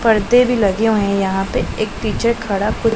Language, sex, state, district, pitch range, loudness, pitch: Hindi, female, Punjab, Pathankot, 200-230 Hz, -17 LUFS, 220 Hz